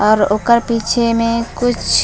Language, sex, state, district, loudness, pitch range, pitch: Chhattisgarhi, female, Chhattisgarh, Raigarh, -15 LUFS, 215-235 Hz, 230 Hz